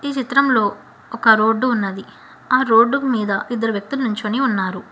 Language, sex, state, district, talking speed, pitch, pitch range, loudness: Telugu, female, Telangana, Hyderabad, 145 wpm, 225 Hz, 210-260 Hz, -18 LUFS